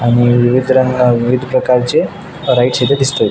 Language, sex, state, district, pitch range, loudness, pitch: Marathi, male, Maharashtra, Nagpur, 125-130 Hz, -13 LUFS, 125 Hz